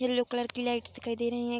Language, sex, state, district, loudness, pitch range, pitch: Hindi, female, Bihar, Darbhanga, -32 LUFS, 240-245 Hz, 240 Hz